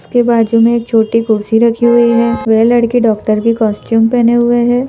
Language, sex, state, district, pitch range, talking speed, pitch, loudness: Hindi, female, Madhya Pradesh, Bhopal, 225-240 Hz, 210 wpm, 230 Hz, -11 LUFS